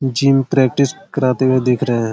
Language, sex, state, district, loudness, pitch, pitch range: Hindi, male, Jharkhand, Jamtara, -16 LUFS, 130 Hz, 125-135 Hz